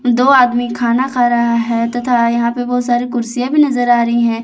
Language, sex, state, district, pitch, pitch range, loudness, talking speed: Hindi, female, Jharkhand, Palamu, 240 Hz, 235-250 Hz, -14 LUFS, 230 wpm